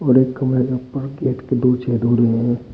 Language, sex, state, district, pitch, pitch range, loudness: Hindi, male, Uttar Pradesh, Shamli, 125 Hz, 120-130 Hz, -18 LUFS